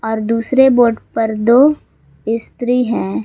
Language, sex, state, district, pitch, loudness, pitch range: Hindi, female, Jharkhand, Palamu, 230 Hz, -14 LUFS, 225-250 Hz